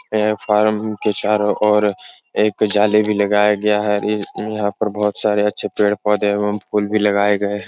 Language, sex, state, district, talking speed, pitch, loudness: Hindi, male, Uttar Pradesh, Etah, 190 wpm, 105 Hz, -17 LUFS